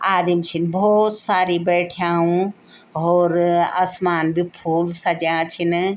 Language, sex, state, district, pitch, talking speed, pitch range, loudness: Garhwali, female, Uttarakhand, Tehri Garhwal, 175 Hz, 110 wpm, 170-185 Hz, -19 LUFS